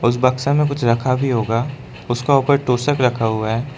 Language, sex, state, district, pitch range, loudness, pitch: Hindi, male, Arunachal Pradesh, Lower Dibang Valley, 120-140 Hz, -18 LUFS, 125 Hz